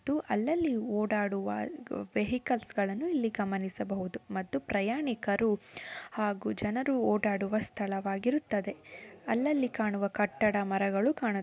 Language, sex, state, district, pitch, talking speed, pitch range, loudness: Kannada, female, Karnataka, Shimoga, 210 Hz, 95 wpm, 200-245 Hz, -32 LUFS